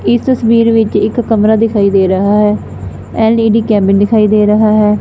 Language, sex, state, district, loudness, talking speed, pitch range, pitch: Punjabi, female, Punjab, Fazilka, -10 LUFS, 190 wpm, 210-225 Hz, 215 Hz